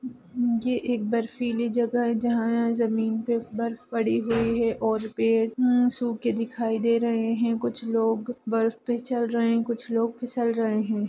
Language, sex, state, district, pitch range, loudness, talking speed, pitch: Hindi, female, Bihar, Madhepura, 225-240 Hz, -25 LUFS, 185 wpm, 230 Hz